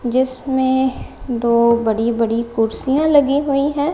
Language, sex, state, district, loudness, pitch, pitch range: Hindi, female, Punjab, Kapurthala, -17 LUFS, 260 Hz, 235-275 Hz